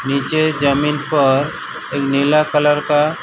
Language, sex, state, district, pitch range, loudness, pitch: Hindi, male, Gujarat, Valsad, 140-150 Hz, -16 LUFS, 150 Hz